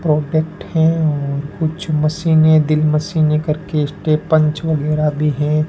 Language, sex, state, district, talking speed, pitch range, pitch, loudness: Hindi, male, Rajasthan, Bikaner, 125 wpm, 150-160 Hz, 155 Hz, -16 LUFS